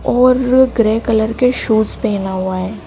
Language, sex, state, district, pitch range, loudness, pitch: Hindi, female, Madhya Pradesh, Dhar, 210-250 Hz, -14 LUFS, 220 Hz